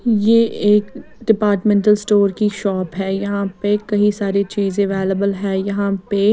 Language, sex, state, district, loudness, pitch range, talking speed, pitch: Hindi, female, Bihar, West Champaran, -17 LUFS, 195-210 Hz, 150 wpm, 205 Hz